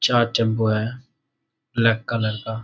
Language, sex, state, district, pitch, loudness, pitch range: Hindi, male, Bihar, Saharsa, 115 Hz, -22 LUFS, 110-120 Hz